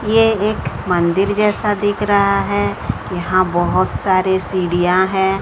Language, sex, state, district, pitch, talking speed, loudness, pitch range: Hindi, female, Odisha, Sambalpur, 190 Hz, 135 wpm, -16 LUFS, 180-205 Hz